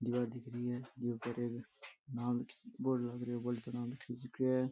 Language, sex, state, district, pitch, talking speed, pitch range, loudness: Rajasthani, male, Rajasthan, Nagaur, 120 Hz, 230 wpm, 120-125 Hz, -40 LUFS